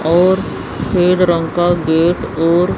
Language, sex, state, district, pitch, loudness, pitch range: Hindi, female, Chandigarh, Chandigarh, 175 Hz, -14 LUFS, 165-180 Hz